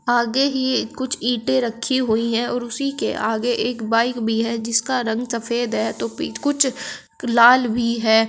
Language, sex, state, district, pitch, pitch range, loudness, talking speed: Hindi, female, Uttar Pradesh, Shamli, 240 Hz, 230-255 Hz, -20 LUFS, 180 wpm